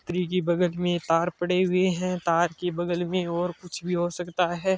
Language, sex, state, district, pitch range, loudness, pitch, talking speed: Hindi, male, Rajasthan, Churu, 175-180 Hz, -26 LUFS, 175 Hz, 225 wpm